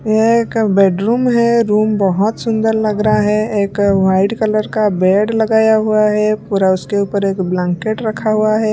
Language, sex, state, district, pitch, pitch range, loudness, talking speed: Hindi, female, Punjab, Pathankot, 215 Hz, 200-220 Hz, -14 LUFS, 180 wpm